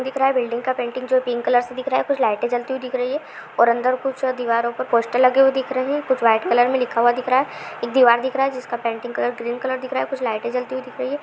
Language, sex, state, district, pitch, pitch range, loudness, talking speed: Hindi, female, Bihar, Supaul, 255 Hz, 240-260 Hz, -20 LUFS, 320 wpm